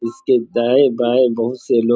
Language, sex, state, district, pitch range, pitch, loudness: Hindi, male, Bihar, Samastipur, 115-125 Hz, 120 Hz, -16 LUFS